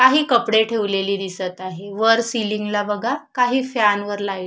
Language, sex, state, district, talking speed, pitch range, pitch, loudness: Marathi, female, Maharashtra, Solapur, 175 wpm, 200-235 Hz, 210 Hz, -20 LUFS